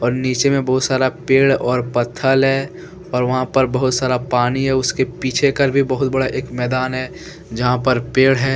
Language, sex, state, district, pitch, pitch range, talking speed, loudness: Hindi, male, Jharkhand, Deoghar, 130 Hz, 125-135 Hz, 205 wpm, -17 LUFS